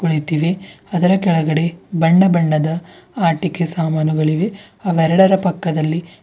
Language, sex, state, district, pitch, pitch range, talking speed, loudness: Kannada, female, Karnataka, Bidar, 170 Hz, 160-180 Hz, 95 wpm, -17 LUFS